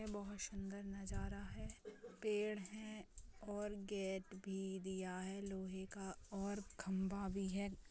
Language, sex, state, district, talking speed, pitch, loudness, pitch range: Hindi, female, Maharashtra, Nagpur, 130 wpm, 195 Hz, -47 LUFS, 190-205 Hz